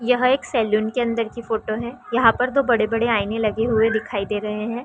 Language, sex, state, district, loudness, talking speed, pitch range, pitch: Hindi, female, Chhattisgarh, Raigarh, -21 LUFS, 260 wpm, 220-240 Hz, 230 Hz